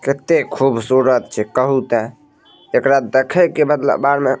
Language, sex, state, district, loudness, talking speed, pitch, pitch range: Maithili, male, Bihar, Madhepura, -16 LUFS, 165 wpm, 135 Hz, 130-140 Hz